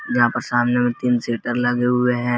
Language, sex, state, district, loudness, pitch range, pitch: Hindi, male, Jharkhand, Garhwa, -19 LUFS, 120-125 Hz, 120 Hz